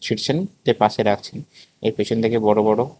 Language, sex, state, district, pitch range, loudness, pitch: Bengali, male, Tripura, West Tripura, 105-120 Hz, -20 LUFS, 110 Hz